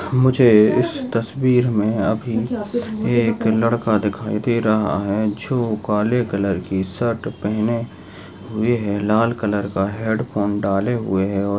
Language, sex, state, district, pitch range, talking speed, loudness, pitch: Hindi, male, Maharashtra, Chandrapur, 100-120 Hz, 150 wpm, -19 LUFS, 110 Hz